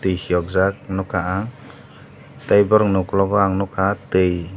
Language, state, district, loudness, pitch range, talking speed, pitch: Kokborok, Tripura, Dhalai, -19 LUFS, 95-100 Hz, 155 wpm, 95 Hz